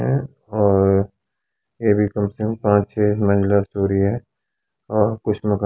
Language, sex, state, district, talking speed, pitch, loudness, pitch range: Hindi, male, Uttar Pradesh, Etah, 160 wpm, 105 Hz, -19 LUFS, 100-110 Hz